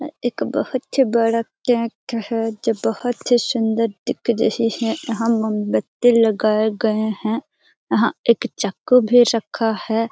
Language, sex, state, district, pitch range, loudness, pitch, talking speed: Hindi, female, Bihar, Jamui, 220-240 Hz, -19 LUFS, 230 Hz, 140 wpm